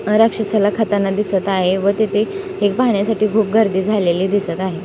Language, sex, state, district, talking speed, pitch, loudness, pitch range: Hindi, female, Maharashtra, Sindhudurg, 175 wpm, 205 Hz, -17 LUFS, 195-220 Hz